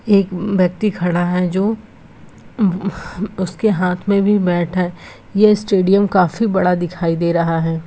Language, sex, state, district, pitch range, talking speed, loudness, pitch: Hindi, female, Bihar, Gopalganj, 175-200 Hz, 145 wpm, -17 LUFS, 185 Hz